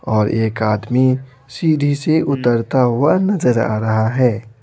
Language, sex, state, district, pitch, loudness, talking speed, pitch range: Hindi, male, Bihar, Patna, 125 Hz, -16 LUFS, 140 wpm, 110-140 Hz